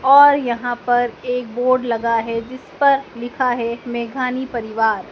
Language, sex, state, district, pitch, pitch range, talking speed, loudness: Hindi, female, Madhya Pradesh, Dhar, 245 Hz, 235-255 Hz, 150 wpm, -18 LUFS